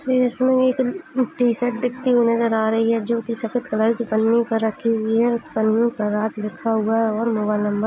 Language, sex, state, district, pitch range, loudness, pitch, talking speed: Hindi, female, Uttar Pradesh, Jalaun, 220-245 Hz, -20 LUFS, 230 Hz, 230 wpm